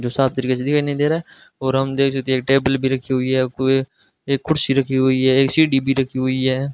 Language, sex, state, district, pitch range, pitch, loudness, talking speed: Hindi, male, Rajasthan, Bikaner, 130-135 Hz, 135 Hz, -18 LUFS, 275 wpm